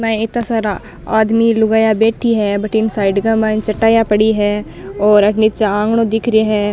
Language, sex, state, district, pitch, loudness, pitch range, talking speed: Rajasthani, female, Rajasthan, Nagaur, 220 Hz, -14 LUFS, 210-225 Hz, 170 wpm